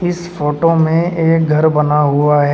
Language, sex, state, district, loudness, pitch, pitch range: Hindi, male, Uttar Pradesh, Shamli, -13 LUFS, 160 Hz, 150-165 Hz